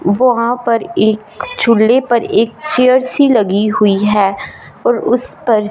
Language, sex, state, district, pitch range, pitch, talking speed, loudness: Hindi, female, Punjab, Fazilka, 210-250 Hz, 230 Hz, 155 wpm, -13 LUFS